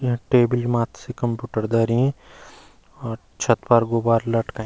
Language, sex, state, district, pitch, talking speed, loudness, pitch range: Garhwali, male, Uttarakhand, Uttarkashi, 115 Hz, 140 wpm, -21 LUFS, 115-120 Hz